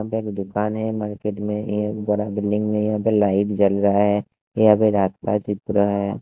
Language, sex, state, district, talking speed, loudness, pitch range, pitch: Hindi, male, Haryana, Jhajjar, 210 wpm, -21 LUFS, 100-105 Hz, 105 Hz